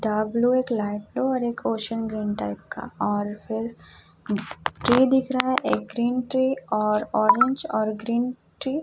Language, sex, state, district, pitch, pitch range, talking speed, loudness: Hindi, female, Chhattisgarh, Raipur, 235 Hz, 215-260 Hz, 165 wpm, -24 LUFS